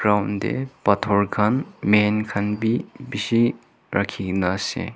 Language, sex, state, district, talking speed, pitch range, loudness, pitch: Nagamese, male, Nagaland, Kohima, 120 wpm, 100-115 Hz, -22 LUFS, 105 Hz